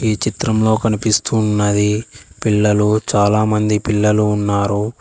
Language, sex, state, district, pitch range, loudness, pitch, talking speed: Telugu, male, Telangana, Hyderabad, 105-110 Hz, -16 LUFS, 105 Hz, 95 wpm